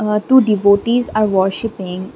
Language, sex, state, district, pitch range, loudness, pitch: English, female, Assam, Kamrup Metropolitan, 195-225 Hz, -15 LUFS, 210 Hz